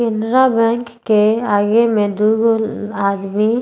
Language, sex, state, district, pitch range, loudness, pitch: Sadri, female, Chhattisgarh, Jashpur, 210-230 Hz, -15 LUFS, 220 Hz